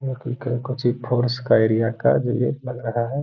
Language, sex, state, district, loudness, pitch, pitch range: Hindi, male, Bihar, Gaya, -22 LUFS, 125 Hz, 120-130 Hz